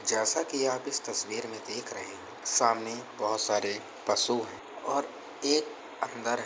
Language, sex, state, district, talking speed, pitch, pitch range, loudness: Hindi, male, Uttar Pradesh, Varanasi, 165 wpm, 120 Hz, 110-140 Hz, -30 LUFS